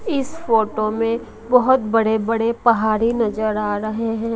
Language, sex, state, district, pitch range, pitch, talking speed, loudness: Hindi, female, Odisha, Malkangiri, 220-235 Hz, 225 Hz, 150 wpm, -19 LUFS